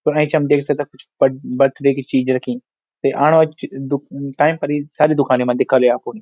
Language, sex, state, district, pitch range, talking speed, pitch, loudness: Garhwali, male, Uttarakhand, Uttarkashi, 130-150 Hz, 220 wpm, 140 Hz, -17 LUFS